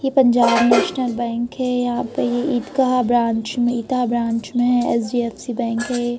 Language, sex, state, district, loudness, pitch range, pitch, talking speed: Hindi, female, Uttar Pradesh, Etah, -19 LUFS, 235-250 Hz, 240 Hz, 145 wpm